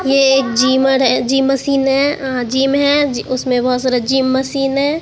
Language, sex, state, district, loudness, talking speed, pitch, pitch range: Hindi, female, Bihar, Katihar, -14 LUFS, 205 wpm, 270 Hz, 255-275 Hz